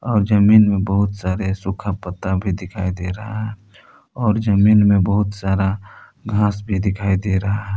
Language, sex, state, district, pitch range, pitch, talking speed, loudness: Hindi, male, Jharkhand, Palamu, 95-105 Hz, 100 Hz, 170 wpm, -18 LUFS